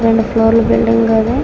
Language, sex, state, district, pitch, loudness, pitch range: Telugu, female, Andhra Pradesh, Srikakulam, 225 Hz, -12 LUFS, 170-230 Hz